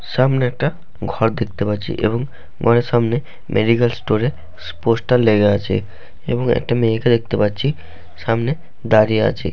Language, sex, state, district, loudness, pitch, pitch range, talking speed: Bengali, male, West Bengal, Malda, -18 LUFS, 115 Hz, 105-125 Hz, 140 wpm